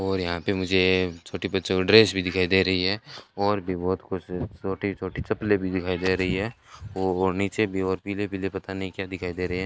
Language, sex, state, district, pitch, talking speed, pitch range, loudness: Hindi, male, Rajasthan, Bikaner, 95 Hz, 230 wpm, 95-100 Hz, -25 LUFS